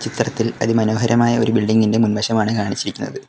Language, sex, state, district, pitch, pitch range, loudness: Malayalam, male, Kerala, Kollam, 115 Hz, 110-115 Hz, -18 LUFS